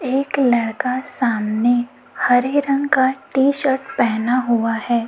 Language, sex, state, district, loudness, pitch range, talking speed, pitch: Hindi, female, Chhattisgarh, Raipur, -18 LUFS, 235-270 Hz, 130 wpm, 250 Hz